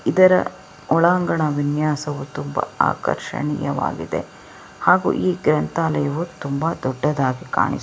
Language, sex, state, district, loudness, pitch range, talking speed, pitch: Kannada, female, Karnataka, Belgaum, -21 LUFS, 145-165 Hz, 85 wpm, 150 Hz